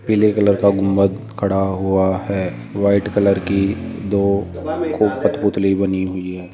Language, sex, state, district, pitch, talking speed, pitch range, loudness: Hindi, male, Rajasthan, Jaipur, 100 Hz, 145 wpm, 95-100 Hz, -18 LUFS